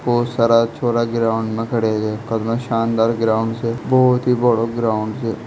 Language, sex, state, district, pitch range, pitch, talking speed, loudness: Hindi, male, Rajasthan, Nagaur, 115-120 Hz, 115 Hz, 175 wpm, -18 LUFS